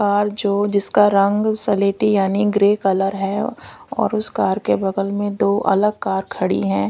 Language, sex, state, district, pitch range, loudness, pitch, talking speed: Hindi, female, Punjab, Kapurthala, 195-205 Hz, -18 LUFS, 200 Hz, 175 wpm